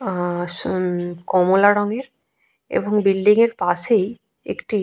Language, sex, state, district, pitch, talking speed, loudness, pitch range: Bengali, female, Jharkhand, Jamtara, 195 Hz, 135 wpm, -19 LUFS, 180-210 Hz